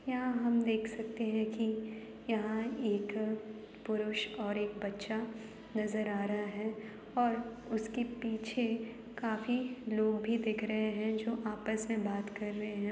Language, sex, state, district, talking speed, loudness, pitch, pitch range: Hindi, female, Uttar Pradesh, Jalaun, 155 wpm, -36 LUFS, 220 Hz, 215-230 Hz